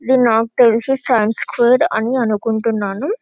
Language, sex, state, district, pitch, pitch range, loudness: Telugu, female, Telangana, Karimnagar, 235 Hz, 225-255 Hz, -15 LUFS